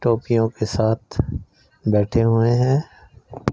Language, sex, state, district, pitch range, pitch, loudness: Hindi, male, Punjab, Fazilka, 110-120 Hz, 115 Hz, -20 LUFS